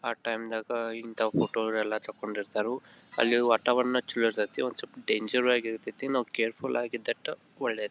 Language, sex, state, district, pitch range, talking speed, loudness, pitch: Kannada, male, Karnataka, Belgaum, 110-120 Hz, 160 wpm, -30 LUFS, 115 Hz